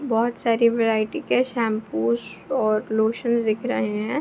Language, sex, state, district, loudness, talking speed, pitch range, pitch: Hindi, female, Bihar, Begusarai, -23 LUFS, 145 wpm, 215-235 Hz, 225 Hz